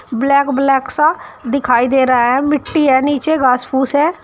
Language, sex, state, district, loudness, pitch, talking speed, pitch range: Hindi, female, Uttar Pradesh, Shamli, -14 LUFS, 275 Hz, 185 wpm, 260-295 Hz